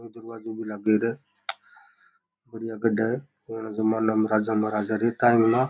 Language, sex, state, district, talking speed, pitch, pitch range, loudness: Rajasthani, male, Rajasthan, Nagaur, 125 wpm, 115 Hz, 110-115 Hz, -25 LUFS